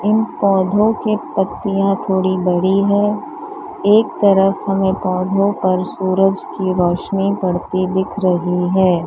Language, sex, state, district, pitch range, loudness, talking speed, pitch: Hindi, female, Maharashtra, Mumbai Suburban, 185-205 Hz, -16 LUFS, 125 wpm, 195 Hz